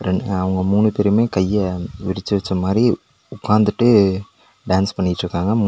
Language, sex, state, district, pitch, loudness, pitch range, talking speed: Tamil, male, Tamil Nadu, Nilgiris, 100 Hz, -18 LUFS, 95-105 Hz, 125 wpm